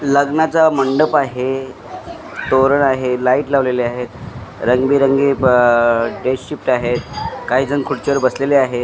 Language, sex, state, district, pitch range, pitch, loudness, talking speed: Marathi, male, Maharashtra, Mumbai Suburban, 125-140 Hz, 130 Hz, -16 LUFS, 115 wpm